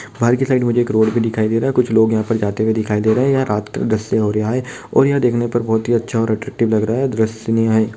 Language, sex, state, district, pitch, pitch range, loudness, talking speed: Hindi, male, Bihar, Jamui, 115 Hz, 110-125 Hz, -17 LUFS, 265 wpm